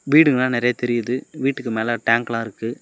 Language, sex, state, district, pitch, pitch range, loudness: Tamil, male, Tamil Nadu, Namakkal, 120 Hz, 115-130 Hz, -20 LUFS